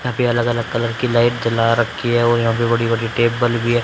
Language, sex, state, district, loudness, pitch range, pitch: Hindi, male, Haryana, Charkhi Dadri, -17 LUFS, 115-120 Hz, 120 Hz